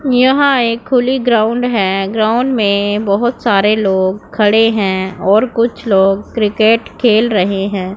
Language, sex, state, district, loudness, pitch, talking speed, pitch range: Hindi, female, Punjab, Pathankot, -13 LUFS, 215 Hz, 145 wpm, 200-235 Hz